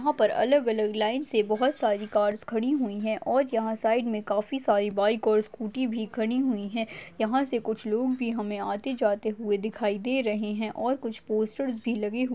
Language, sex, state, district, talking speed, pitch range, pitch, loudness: Hindi, female, Maharashtra, Chandrapur, 220 wpm, 215-245 Hz, 220 Hz, -27 LUFS